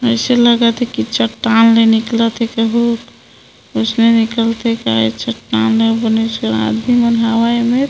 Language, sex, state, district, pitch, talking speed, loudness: Hindi, female, Chhattisgarh, Bilaspur, 230 Hz, 120 wpm, -14 LUFS